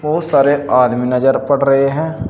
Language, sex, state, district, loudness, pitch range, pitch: Hindi, male, Uttar Pradesh, Saharanpur, -14 LUFS, 125-145 Hz, 140 Hz